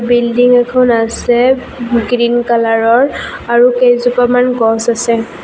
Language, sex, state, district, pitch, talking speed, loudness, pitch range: Assamese, female, Assam, Kamrup Metropolitan, 240 Hz, 100 wpm, -11 LUFS, 235-245 Hz